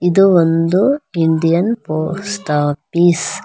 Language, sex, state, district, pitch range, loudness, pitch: Kannada, female, Karnataka, Bangalore, 160-190 Hz, -15 LUFS, 170 Hz